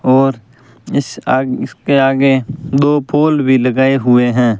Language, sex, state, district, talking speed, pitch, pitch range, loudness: Hindi, male, Rajasthan, Bikaner, 145 wpm, 135 Hz, 125-140 Hz, -13 LUFS